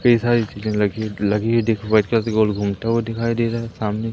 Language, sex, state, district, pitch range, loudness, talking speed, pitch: Hindi, male, Madhya Pradesh, Umaria, 105-115 Hz, -20 LUFS, 275 wpm, 110 Hz